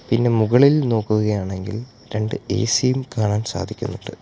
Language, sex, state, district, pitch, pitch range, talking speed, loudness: Malayalam, male, Kerala, Kollam, 110 Hz, 105-125 Hz, 115 wpm, -20 LUFS